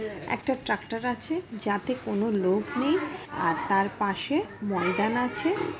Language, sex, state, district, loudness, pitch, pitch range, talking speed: Bengali, female, West Bengal, Kolkata, -28 LUFS, 225 Hz, 205-290 Hz, 125 wpm